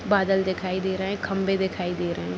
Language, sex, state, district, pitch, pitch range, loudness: Hindi, female, Bihar, Madhepura, 190 Hz, 180-195 Hz, -25 LUFS